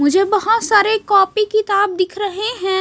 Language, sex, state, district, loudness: Hindi, female, Chhattisgarh, Raipur, -16 LUFS